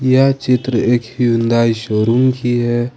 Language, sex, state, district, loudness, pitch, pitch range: Hindi, male, Jharkhand, Ranchi, -15 LUFS, 120 Hz, 115-130 Hz